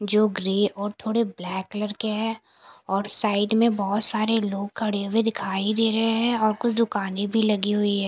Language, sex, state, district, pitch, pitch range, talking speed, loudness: Hindi, female, Punjab, Kapurthala, 210 Hz, 200-225 Hz, 200 wpm, -22 LUFS